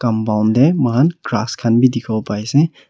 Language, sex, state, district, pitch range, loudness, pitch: Nagamese, male, Nagaland, Kohima, 110-135 Hz, -16 LUFS, 120 Hz